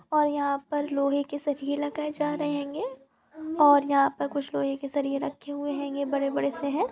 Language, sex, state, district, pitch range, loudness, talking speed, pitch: Hindi, female, Goa, North and South Goa, 280-295 Hz, -27 LUFS, 155 wpm, 285 Hz